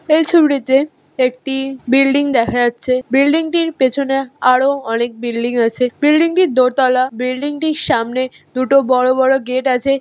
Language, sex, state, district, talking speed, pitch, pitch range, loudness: Bengali, female, West Bengal, Jhargram, 145 wpm, 260 Hz, 255-280 Hz, -15 LUFS